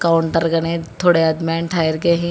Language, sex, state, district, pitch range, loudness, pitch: Hindi, female, Telangana, Hyderabad, 165-170 Hz, -18 LUFS, 165 Hz